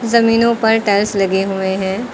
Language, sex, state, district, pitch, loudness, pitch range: Hindi, female, Uttar Pradesh, Lucknow, 205 Hz, -15 LUFS, 195-230 Hz